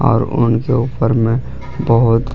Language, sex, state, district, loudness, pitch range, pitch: Hindi, male, Jharkhand, Palamu, -15 LUFS, 115-130 Hz, 120 Hz